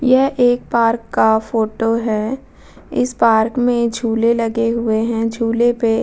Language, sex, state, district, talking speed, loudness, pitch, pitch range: Hindi, female, Bihar, Vaishali, 160 wpm, -17 LUFS, 230 Hz, 225-240 Hz